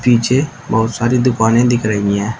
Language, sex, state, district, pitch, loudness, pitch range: Hindi, male, Uttar Pradesh, Shamli, 120 Hz, -15 LUFS, 110-125 Hz